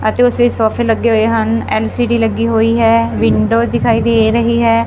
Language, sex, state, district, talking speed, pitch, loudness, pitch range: Punjabi, female, Punjab, Fazilka, 195 wpm, 230 Hz, -13 LUFS, 225-235 Hz